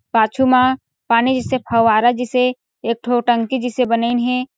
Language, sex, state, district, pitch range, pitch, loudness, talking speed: Chhattisgarhi, female, Chhattisgarh, Sarguja, 230-255 Hz, 245 Hz, -17 LUFS, 155 wpm